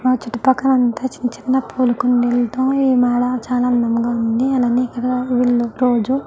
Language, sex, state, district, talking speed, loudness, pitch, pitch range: Telugu, female, Andhra Pradesh, Chittoor, 155 wpm, -17 LUFS, 250 Hz, 240-255 Hz